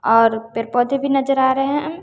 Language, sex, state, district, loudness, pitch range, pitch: Hindi, female, Bihar, West Champaran, -18 LUFS, 230-275 Hz, 265 Hz